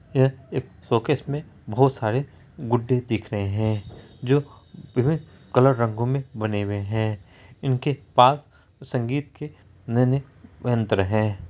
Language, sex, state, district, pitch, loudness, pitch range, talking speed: Hindi, male, Bihar, Araria, 125 Hz, -24 LUFS, 110-135 Hz, 130 wpm